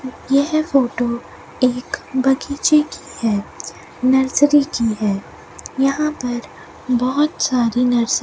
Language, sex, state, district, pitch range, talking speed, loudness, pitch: Hindi, female, Rajasthan, Bikaner, 240-280 Hz, 110 wpm, -18 LUFS, 260 Hz